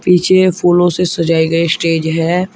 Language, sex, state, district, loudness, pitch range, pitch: Hindi, male, Uttar Pradesh, Shamli, -12 LUFS, 165-180 Hz, 175 Hz